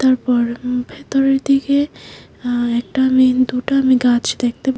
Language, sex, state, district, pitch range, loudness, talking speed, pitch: Bengali, female, Tripura, West Tripura, 245-265 Hz, -16 LUFS, 140 wpm, 255 Hz